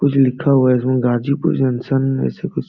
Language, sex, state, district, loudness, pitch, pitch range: Hindi, male, Bihar, Jamui, -17 LUFS, 130 Hz, 125-140 Hz